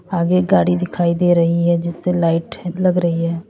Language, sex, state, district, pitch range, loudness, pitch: Hindi, female, Uttar Pradesh, Lalitpur, 170-180 Hz, -17 LUFS, 175 Hz